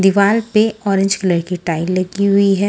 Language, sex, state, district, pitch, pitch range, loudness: Hindi, female, Punjab, Fazilka, 195 Hz, 185-200 Hz, -16 LUFS